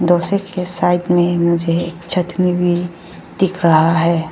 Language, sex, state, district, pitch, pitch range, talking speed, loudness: Hindi, female, Arunachal Pradesh, Lower Dibang Valley, 175 Hz, 170-180 Hz, 155 wpm, -16 LUFS